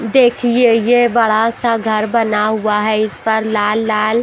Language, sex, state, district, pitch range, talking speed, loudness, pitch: Hindi, female, Bihar, Patna, 215-235 Hz, 155 wpm, -14 LUFS, 220 Hz